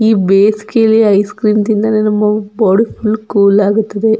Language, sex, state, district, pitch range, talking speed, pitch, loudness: Kannada, female, Karnataka, Dakshina Kannada, 205-220 Hz, 130 wpm, 215 Hz, -12 LUFS